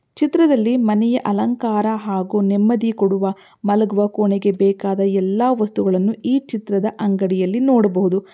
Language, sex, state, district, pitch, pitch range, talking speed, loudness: Kannada, female, Karnataka, Belgaum, 205 Hz, 195-230 Hz, 110 wpm, -18 LUFS